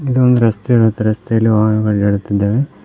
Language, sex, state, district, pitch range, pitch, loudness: Kannada, male, Karnataka, Koppal, 105-120 Hz, 110 Hz, -14 LUFS